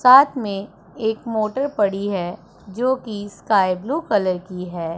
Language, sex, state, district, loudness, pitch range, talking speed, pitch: Hindi, female, Punjab, Pathankot, -21 LUFS, 190-235 Hz, 155 wpm, 205 Hz